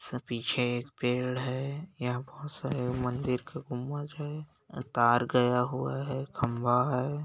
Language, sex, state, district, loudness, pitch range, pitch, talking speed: Hindi, male, Bihar, Bhagalpur, -31 LUFS, 125-140 Hz, 125 Hz, 150 wpm